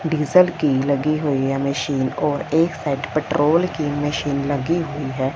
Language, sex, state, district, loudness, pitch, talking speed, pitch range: Hindi, female, Punjab, Fazilka, -20 LUFS, 145 Hz, 170 wpm, 140-155 Hz